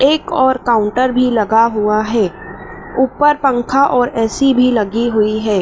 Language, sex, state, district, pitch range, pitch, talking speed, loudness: Hindi, female, Madhya Pradesh, Dhar, 215-260 Hz, 235 Hz, 160 wpm, -14 LUFS